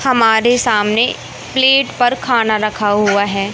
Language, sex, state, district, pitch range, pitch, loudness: Hindi, male, Madhya Pradesh, Katni, 210-250 Hz, 225 Hz, -14 LUFS